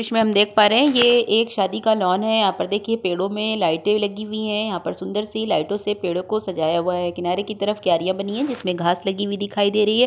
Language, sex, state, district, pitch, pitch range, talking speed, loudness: Hindi, female, Uttar Pradesh, Budaun, 205 Hz, 185-215 Hz, 275 wpm, -20 LUFS